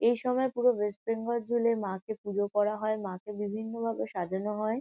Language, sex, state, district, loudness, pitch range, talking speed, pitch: Bengali, female, West Bengal, Kolkata, -31 LUFS, 205-230 Hz, 185 wpm, 215 Hz